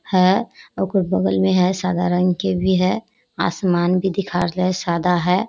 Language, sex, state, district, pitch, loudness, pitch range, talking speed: Hindi, female, Bihar, Kishanganj, 185 Hz, -19 LUFS, 175-190 Hz, 185 wpm